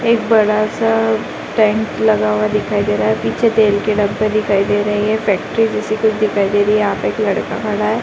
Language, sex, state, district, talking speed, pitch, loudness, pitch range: Hindi, female, Uttar Pradesh, Muzaffarnagar, 230 wpm, 215 Hz, -15 LUFS, 205-215 Hz